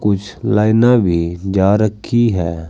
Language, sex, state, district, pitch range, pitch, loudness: Hindi, male, Uttar Pradesh, Saharanpur, 90-110 Hz, 100 Hz, -15 LUFS